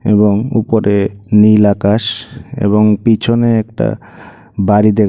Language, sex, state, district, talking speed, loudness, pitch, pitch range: Bengali, male, Tripura, West Tripura, 120 wpm, -12 LUFS, 105 Hz, 105-115 Hz